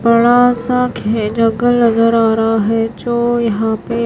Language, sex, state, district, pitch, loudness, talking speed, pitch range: Hindi, female, Himachal Pradesh, Shimla, 230 Hz, -14 LUFS, 165 wpm, 225-240 Hz